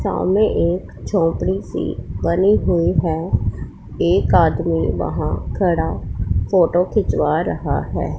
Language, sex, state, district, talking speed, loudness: Hindi, female, Punjab, Pathankot, 110 wpm, -19 LUFS